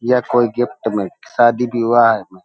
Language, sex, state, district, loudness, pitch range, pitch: Hindi, male, Uttar Pradesh, Hamirpur, -16 LUFS, 115-120 Hz, 120 Hz